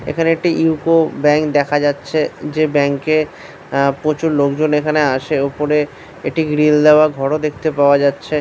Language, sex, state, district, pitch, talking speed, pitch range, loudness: Bengali, male, West Bengal, Paschim Medinipur, 150 Hz, 155 wpm, 145-155 Hz, -15 LUFS